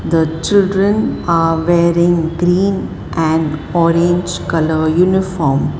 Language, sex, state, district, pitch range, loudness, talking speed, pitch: English, male, Maharashtra, Mumbai Suburban, 160-180 Hz, -14 LUFS, 95 wpm, 170 Hz